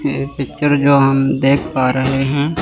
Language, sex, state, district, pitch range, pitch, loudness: Hindi, male, Chandigarh, Chandigarh, 135-145 Hz, 135 Hz, -15 LUFS